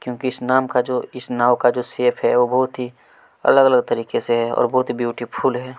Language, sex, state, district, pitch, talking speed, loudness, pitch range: Hindi, male, Chhattisgarh, Kabirdham, 125 Hz, 240 wpm, -19 LUFS, 120-130 Hz